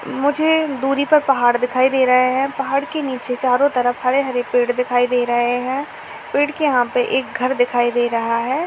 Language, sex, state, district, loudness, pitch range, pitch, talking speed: Hindi, female, Uttar Pradesh, Etah, -18 LUFS, 245-275 Hz, 255 Hz, 200 wpm